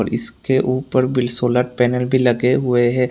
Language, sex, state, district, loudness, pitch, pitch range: Hindi, male, Tripura, West Tripura, -18 LUFS, 125 Hz, 120-130 Hz